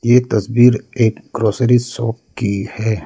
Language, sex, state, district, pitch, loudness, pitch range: Hindi, male, Arunachal Pradesh, Lower Dibang Valley, 115 Hz, -16 LUFS, 110-120 Hz